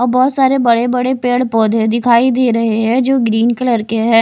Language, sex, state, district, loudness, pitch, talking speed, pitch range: Hindi, female, Odisha, Khordha, -13 LUFS, 240 Hz, 225 wpm, 225-255 Hz